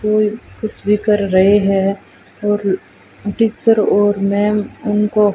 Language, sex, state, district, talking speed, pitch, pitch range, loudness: Hindi, female, Rajasthan, Bikaner, 125 wpm, 210 Hz, 200-215 Hz, -16 LUFS